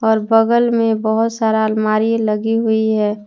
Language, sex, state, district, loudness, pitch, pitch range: Hindi, female, Jharkhand, Palamu, -16 LUFS, 220 Hz, 215-225 Hz